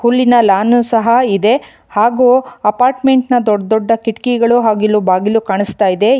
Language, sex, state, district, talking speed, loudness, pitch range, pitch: Kannada, female, Karnataka, Bangalore, 135 wpm, -12 LUFS, 210-245 Hz, 230 Hz